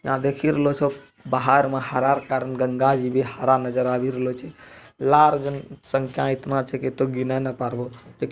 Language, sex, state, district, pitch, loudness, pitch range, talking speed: Angika, male, Bihar, Bhagalpur, 130 Hz, -22 LUFS, 130-140 Hz, 195 wpm